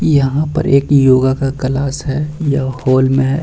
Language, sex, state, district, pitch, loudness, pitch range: Hindi, male, Bihar, Bhagalpur, 135 Hz, -14 LUFS, 130-145 Hz